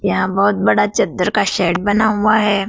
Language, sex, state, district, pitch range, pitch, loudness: Hindi, female, Madhya Pradesh, Dhar, 190-210 Hz, 200 Hz, -15 LUFS